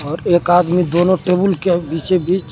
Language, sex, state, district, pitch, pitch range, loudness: Hindi, male, Jharkhand, Garhwa, 180 Hz, 175-185 Hz, -15 LUFS